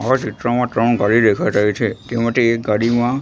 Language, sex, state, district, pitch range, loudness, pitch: Gujarati, male, Gujarat, Gandhinagar, 115-120 Hz, -17 LUFS, 115 Hz